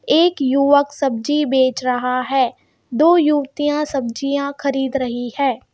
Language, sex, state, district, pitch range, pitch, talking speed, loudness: Hindi, female, Madhya Pradesh, Bhopal, 255-290 Hz, 275 Hz, 125 wpm, -18 LUFS